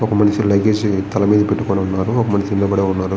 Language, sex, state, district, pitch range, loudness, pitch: Telugu, male, Andhra Pradesh, Srikakulam, 100-105 Hz, -16 LUFS, 100 Hz